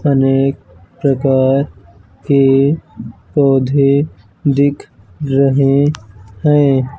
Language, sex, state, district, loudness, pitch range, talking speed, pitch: Hindi, male, Maharashtra, Mumbai Suburban, -14 LUFS, 115-140 Hz, 60 wpm, 135 Hz